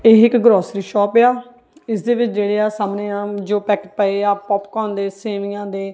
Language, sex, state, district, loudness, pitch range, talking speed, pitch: Punjabi, female, Punjab, Kapurthala, -18 LUFS, 200-225 Hz, 210 wpm, 205 Hz